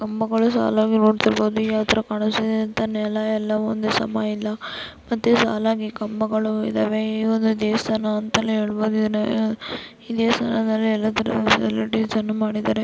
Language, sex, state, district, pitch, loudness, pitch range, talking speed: Kannada, female, Karnataka, Gulbarga, 215 Hz, -21 LUFS, 215-220 Hz, 130 wpm